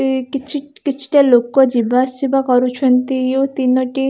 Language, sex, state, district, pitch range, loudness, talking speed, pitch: Odia, female, Odisha, Khordha, 255-275 Hz, -15 LUFS, 130 wpm, 265 Hz